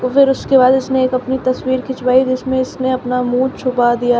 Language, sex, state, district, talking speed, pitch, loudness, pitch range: Hindi, female, Uttar Pradesh, Shamli, 200 wpm, 255 Hz, -15 LUFS, 250-260 Hz